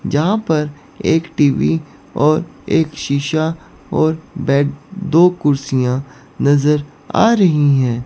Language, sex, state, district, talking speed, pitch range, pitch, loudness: Hindi, female, Chandigarh, Chandigarh, 110 wpm, 140-160 Hz, 150 Hz, -16 LUFS